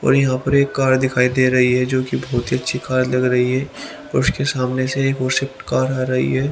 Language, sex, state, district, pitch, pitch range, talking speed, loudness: Hindi, male, Haryana, Rohtak, 130 Hz, 125-135 Hz, 265 wpm, -18 LUFS